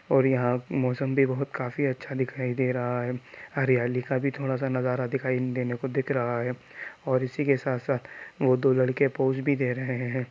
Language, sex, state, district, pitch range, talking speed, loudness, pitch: Hindi, male, Bihar, East Champaran, 125-135 Hz, 215 wpm, -27 LUFS, 130 Hz